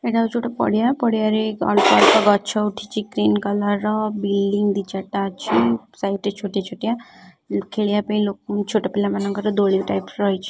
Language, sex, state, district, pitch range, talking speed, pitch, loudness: Odia, female, Odisha, Khordha, 200-215 Hz, 165 wpm, 205 Hz, -20 LUFS